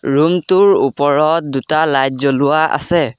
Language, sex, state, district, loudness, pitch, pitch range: Assamese, male, Assam, Sonitpur, -14 LUFS, 150 Hz, 140-160 Hz